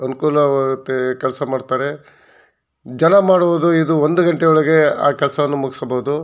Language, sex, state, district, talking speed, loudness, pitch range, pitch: Kannada, male, Karnataka, Shimoga, 105 wpm, -16 LUFS, 130-160 Hz, 145 Hz